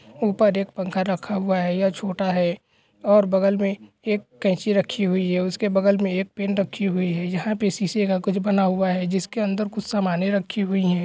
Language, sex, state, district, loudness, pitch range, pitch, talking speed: Hindi, male, Bihar, East Champaran, -23 LUFS, 185-205 Hz, 195 Hz, 210 wpm